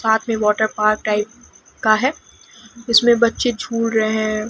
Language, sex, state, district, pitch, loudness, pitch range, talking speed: Hindi, female, Chhattisgarh, Sukma, 220 Hz, -18 LUFS, 215-235 Hz, 145 wpm